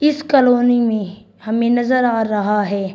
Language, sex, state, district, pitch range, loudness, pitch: Hindi, female, Uttar Pradesh, Shamli, 210-245 Hz, -16 LUFS, 230 Hz